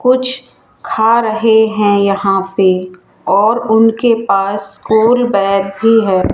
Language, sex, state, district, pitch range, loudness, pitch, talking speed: Hindi, female, Rajasthan, Jaipur, 195-225 Hz, -12 LUFS, 220 Hz, 125 wpm